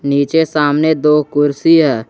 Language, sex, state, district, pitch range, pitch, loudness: Hindi, male, Jharkhand, Garhwa, 140-160 Hz, 150 Hz, -13 LUFS